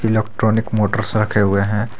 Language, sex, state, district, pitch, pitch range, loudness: Hindi, male, Jharkhand, Garhwa, 110 Hz, 105-110 Hz, -18 LUFS